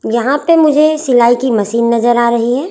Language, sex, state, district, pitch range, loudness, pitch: Hindi, female, Chhattisgarh, Raipur, 235-295 Hz, -11 LUFS, 240 Hz